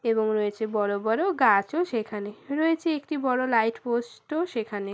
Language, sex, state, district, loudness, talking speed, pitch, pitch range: Bengali, female, West Bengal, Purulia, -26 LUFS, 160 wpm, 230 Hz, 215-295 Hz